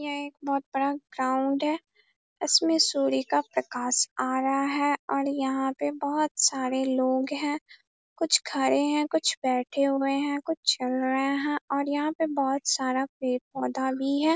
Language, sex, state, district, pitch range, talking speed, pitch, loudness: Hindi, female, Bihar, Darbhanga, 265-295 Hz, 165 wpm, 275 Hz, -26 LUFS